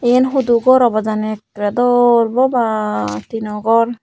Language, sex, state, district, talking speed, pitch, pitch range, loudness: Chakma, female, Tripura, Unakoti, 150 wpm, 230 Hz, 215-245 Hz, -15 LUFS